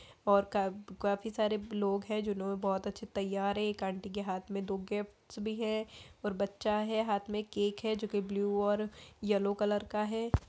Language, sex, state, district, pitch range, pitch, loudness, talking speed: Hindi, female, Bihar, Saharsa, 200-215 Hz, 205 Hz, -35 LUFS, 200 wpm